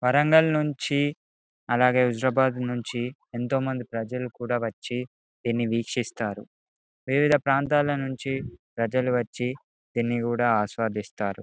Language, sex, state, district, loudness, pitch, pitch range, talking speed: Telugu, male, Telangana, Karimnagar, -26 LUFS, 125 Hz, 120-135 Hz, 105 wpm